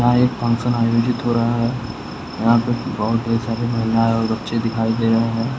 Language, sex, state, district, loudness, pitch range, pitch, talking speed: Hindi, male, Uttar Pradesh, Lucknow, -19 LUFS, 115-120 Hz, 115 Hz, 205 wpm